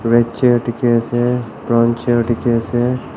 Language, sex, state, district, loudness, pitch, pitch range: Nagamese, male, Nagaland, Kohima, -16 LUFS, 120 Hz, 115-120 Hz